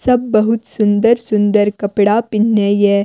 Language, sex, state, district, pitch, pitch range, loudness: Maithili, female, Bihar, Madhepura, 210 Hz, 205-225 Hz, -14 LUFS